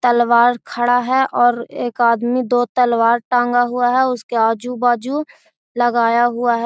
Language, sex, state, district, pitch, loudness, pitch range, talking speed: Magahi, female, Bihar, Gaya, 245 Hz, -16 LUFS, 235-245 Hz, 155 wpm